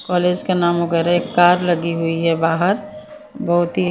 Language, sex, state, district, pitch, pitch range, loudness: Hindi, female, Chandigarh, Chandigarh, 175 Hz, 170-185 Hz, -17 LUFS